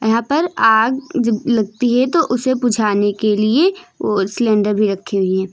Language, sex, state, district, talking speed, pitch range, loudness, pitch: Hindi, female, Uttar Pradesh, Lucknow, 185 wpm, 210-255 Hz, -16 LUFS, 225 Hz